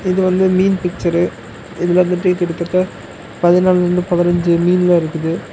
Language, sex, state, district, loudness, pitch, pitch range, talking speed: Tamil, male, Tamil Nadu, Namakkal, -15 LUFS, 180 Hz, 175-185 Hz, 120 wpm